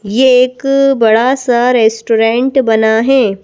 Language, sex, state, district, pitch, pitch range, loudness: Hindi, female, Madhya Pradesh, Bhopal, 240 Hz, 225-260 Hz, -10 LUFS